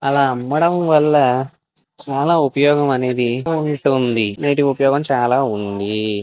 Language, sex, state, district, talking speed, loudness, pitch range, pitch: Telugu, male, Andhra Pradesh, Visakhapatnam, 105 wpm, -17 LUFS, 125-145 Hz, 140 Hz